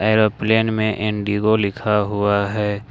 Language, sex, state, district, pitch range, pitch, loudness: Hindi, male, Jharkhand, Ranchi, 105-110 Hz, 105 Hz, -19 LUFS